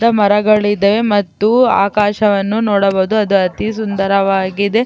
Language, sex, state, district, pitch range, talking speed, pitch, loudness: Kannada, female, Karnataka, Chamarajanagar, 195-215 Hz, 100 wpm, 205 Hz, -13 LUFS